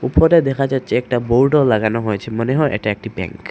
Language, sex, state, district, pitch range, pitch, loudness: Bengali, male, Assam, Hailakandi, 110-135 Hz, 120 Hz, -17 LUFS